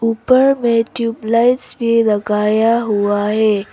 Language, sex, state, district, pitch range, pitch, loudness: Hindi, female, Arunachal Pradesh, Papum Pare, 210-235 Hz, 230 Hz, -15 LUFS